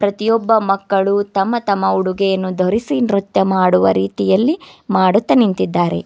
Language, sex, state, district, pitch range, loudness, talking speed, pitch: Kannada, female, Karnataka, Bidar, 185-215 Hz, -16 LUFS, 110 wpm, 195 Hz